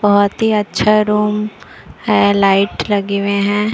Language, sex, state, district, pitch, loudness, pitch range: Hindi, female, Bihar, Patna, 205 Hz, -14 LUFS, 200-210 Hz